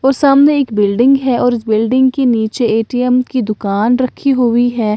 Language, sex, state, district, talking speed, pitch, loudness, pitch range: Hindi, female, Bihar, Katihar, 180 wpm, 245 Hz, -13 LUFS, 225-260 Hz